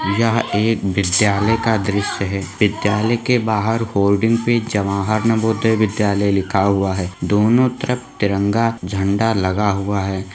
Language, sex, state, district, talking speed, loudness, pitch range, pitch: Hindi, male, Jharkhand, Sahebganj, 140 wpm, -18 LUFS, 100-115 Hz, 105 Hz